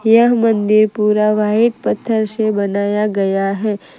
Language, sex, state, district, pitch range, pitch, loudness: Hindi, female, Gujarat, Valsad, 205-220 Hz, 215 Hz, -15 LUFS